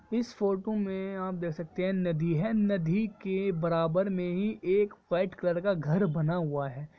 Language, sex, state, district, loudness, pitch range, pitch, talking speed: Hindi, male, Jharkhand, Jamtara, -30 LUFS, 170-200 Hz, 185 Hz, 190 wpm